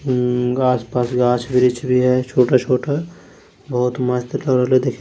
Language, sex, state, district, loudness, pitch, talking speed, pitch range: Hindi, male, Bihar, Madhepura, -18 LUFS, 125 Hz, 180 wpm, 125-130 Hz